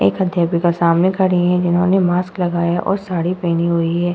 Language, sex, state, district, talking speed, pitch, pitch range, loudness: Hindi, female, Uttar Pradesh, Budaun, 190 wpm, 175 Hz, 170-180 Hz, -17 LUFS